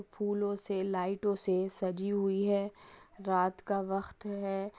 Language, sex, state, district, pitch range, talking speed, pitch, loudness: Hindi, female, Chhattisgarh, Bastar, 190-205 Hz, 140 wpm, 195 Hz, -34 LUFS